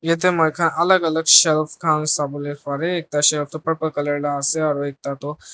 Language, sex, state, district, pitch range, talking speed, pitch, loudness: Nagamese, male, Nagaland, Dimapur, 145-160 Hz, 215 wpm, 155 Hz, -19 LUFS